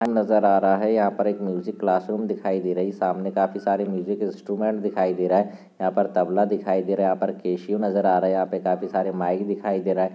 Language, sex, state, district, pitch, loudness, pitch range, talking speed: Hindi, male, Bihar, Lakhisarai, 95 Hz, -23 LUFS, 95-100 Hz, 265 wpm